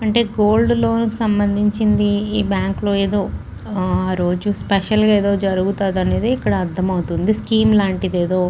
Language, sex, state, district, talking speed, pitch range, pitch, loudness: Telugu, female, Andhra Pradesh, Chittoor, 115 wpm, 190-215 Hz, 205 Hz, -18 LUFS